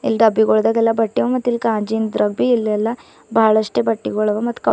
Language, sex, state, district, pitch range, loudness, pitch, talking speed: Kannada, female, Karnataka, Bidar, 215-230 Hz, -17 LUFS, 220 Hz, 140 wpm